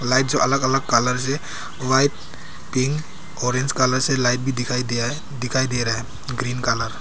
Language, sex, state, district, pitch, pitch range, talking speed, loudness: Hindi, male, Arunachal Pradesh, Papum Pare, 130 Hz, 125-135 Hz, 195 wpm, -21 LUFS